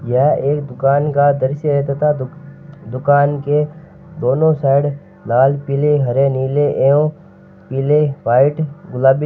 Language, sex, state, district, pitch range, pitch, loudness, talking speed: Marwari, male, Rajasthan, Nagaur, 135-150 Hz, 145 Hz, -16 LUFS, 125 wpm